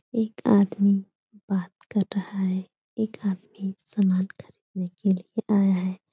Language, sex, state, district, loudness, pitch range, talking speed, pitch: Hindi, female, Bihar, Supaul, -26 LUFS, 190-210 Hz, 155 wpm, 195 Hz